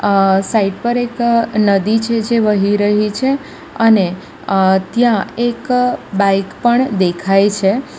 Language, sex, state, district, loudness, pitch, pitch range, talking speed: Gujarati, female, Gujarat, Valsad, -14 LUFS, 210 Hz, 195-240 Hz, 135 wpm